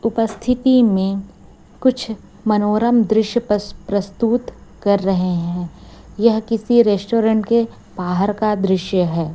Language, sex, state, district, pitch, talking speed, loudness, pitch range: Hindi, female, Chhattisgarh, Raipur, 210 Hz, 110 wpm, -18 LUFS, 195-230 Hz